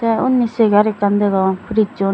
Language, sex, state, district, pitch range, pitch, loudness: Chakma, female, Tripura, Dhalai, 200-225 Hz, 210 Hz, -16 LUFS